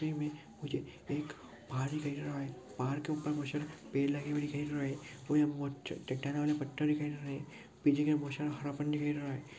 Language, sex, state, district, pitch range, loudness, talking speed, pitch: Hindi, male, Bihar, Gaya, 140-150 Hz, -37 LUFS, 175 wpm, 145 Hz